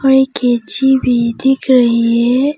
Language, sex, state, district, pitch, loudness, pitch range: Hindi, female, Arunachal Pradesh, Papum Pare, 255 Hz, -12 LUFS, 235-265 Hz